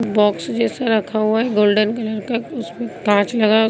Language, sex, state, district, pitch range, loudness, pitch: Hindi, female, Bihar, Begusarai, 210-230 Hz, -18 LUFS, 220 Hz